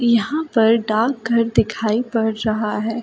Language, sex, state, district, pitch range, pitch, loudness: Hindi, female, Delhi, New Delhi, 220-235 Hz, 225 Hz, -19 LUFS